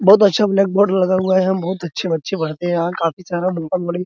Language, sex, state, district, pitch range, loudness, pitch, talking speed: Hindi, male, Bihar, Araria, 175-190 Hz, -17 LUFS, 185 Hz, 250 wpm